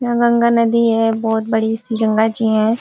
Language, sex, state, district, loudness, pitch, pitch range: Hindi, female, Uttar Pradesh, Ghazipur, -16 LUFS, 225 Hz, 220-235 Hz